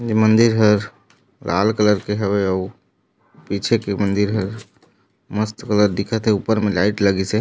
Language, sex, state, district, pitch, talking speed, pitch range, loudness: Chhattisgarhi, male, Chhattisgarh, Raigarh, 105 Hz, 155 wpm, 100-110 Hz, -19 LUFS